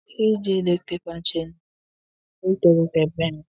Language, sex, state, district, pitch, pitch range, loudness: Bengali, male, West Bengal, Malda, 170 Hz, 165-185 Hz, -22 LUFS